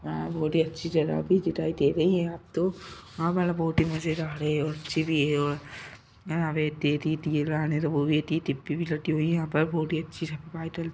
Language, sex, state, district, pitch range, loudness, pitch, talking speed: Hindi, male, Uttar Pradesh, Etah, 150-165 Hz, -28 LUFS, 160 Hz, 185 wpm